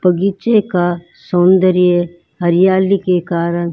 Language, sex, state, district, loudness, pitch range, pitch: Hindi, male, Rajasthan, Bikaner, -14 LUFS, 175-190 Hz, 180 Hz